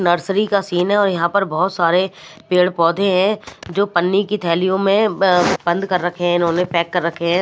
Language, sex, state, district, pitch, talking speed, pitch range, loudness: Hindi, female, Maharashtra, Mumbai Suburban, 180 Hz, 210 wpm, 175-195 Hz, -17 LUFS